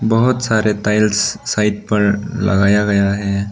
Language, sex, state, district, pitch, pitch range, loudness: Hindi, male, Arunachal Pradesh, Lower Dibang Valley, 105 Hz, 100-110 Hz, -16 LUFS